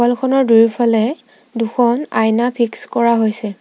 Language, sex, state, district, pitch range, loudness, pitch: Assamese, female, Assam, Sonitpur, 225-245 Hz, -15 LUFS, 235 Hz